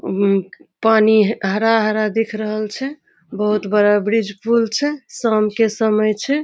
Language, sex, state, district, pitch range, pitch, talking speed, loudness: Maithili, female, Bihar, Saharsa, 210-225 Hz, 215 Hz, 150 wpm, -17 LUFS